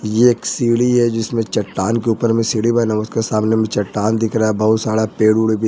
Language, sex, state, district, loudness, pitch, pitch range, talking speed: Hindi, male, Jharkhand, Ranchi, -16 LUFS, 110 Hz, 110-115 Hz, 220 wpm